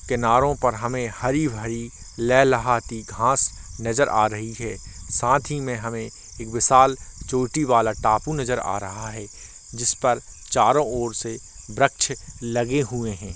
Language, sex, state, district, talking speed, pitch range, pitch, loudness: Hindi, male, Bihar, Samastipur, 140 wpm, 110-125 Hz, 115 Hz, -22 LUFS